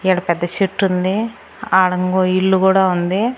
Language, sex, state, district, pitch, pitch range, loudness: Telugu, female, Andhra Pradesh, Annamaya, 185 Hz, 180-190 Hz, -16 LUFS